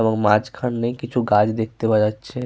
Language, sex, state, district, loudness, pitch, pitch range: Bengali, male, Jharkhand, Sahebganj, -20 LUFS, 110 Hz, 105-120 Hz